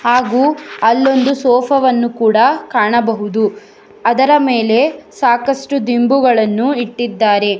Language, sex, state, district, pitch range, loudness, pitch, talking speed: Kannada, female, Karnataka, Bangalore, 225-270 Hz, -13 LUFS, 240 Hz, 85 wpm